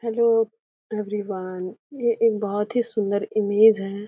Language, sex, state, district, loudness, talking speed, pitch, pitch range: Hindi, female, Bihar, Jahanabad, -23 LUFS, 130 wpm, 215 Hz, 205-230 Hz